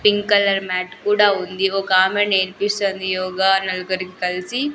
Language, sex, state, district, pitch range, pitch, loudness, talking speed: Telugu, female, Andhra Pradesh, Sri Satya Sai, 185-205 Hz, 195 Hz, -19 LUFS, 140 wpm